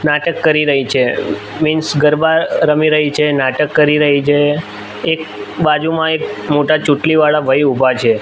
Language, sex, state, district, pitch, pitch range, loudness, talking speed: Gujarati, male, Gujarat, Gandhinagar, 150 Hz, 145-155 Hz, -13 LUFS, 160 wpm